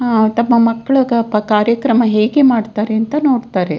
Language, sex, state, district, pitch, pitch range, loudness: Kannada, female, Karnataka, Dakshina Kannada, 230 Hz, 215-240 Hz, -14 LUFS